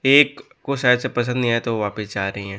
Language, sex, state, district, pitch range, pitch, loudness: Hindi, male, Bihar, West Champaran, 105-130 Hz, 120 Hz, -20 LUFS